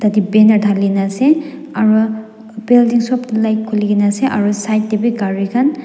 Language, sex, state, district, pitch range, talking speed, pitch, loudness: Nagamese, female, Nagaland, Dimapur, 210-240 Hz, 175 wpm, 220 Hz, -14 LUFS